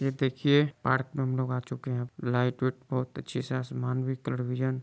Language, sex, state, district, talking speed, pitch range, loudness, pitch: Hindi, male, Bihar, Muzaffarpur, 225 wpm, 125-130 Hz, -30 LUFS, 130 Hz